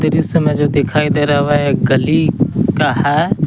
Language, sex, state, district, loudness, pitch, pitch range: Hindi, male, Jharkhand, Ranchi, -14 LUFS, 145 Hz, 145-150 Hz